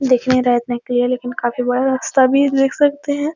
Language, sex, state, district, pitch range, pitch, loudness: Hindi, female, Bihar, Araria, 245-280 Hz, 255 Hz, -16 LUFS